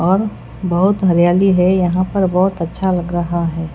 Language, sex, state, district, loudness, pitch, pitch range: Hindi, female, Chhattisgarh, Raipur, -16 LUFS, 180 Hz, 175-190 Hz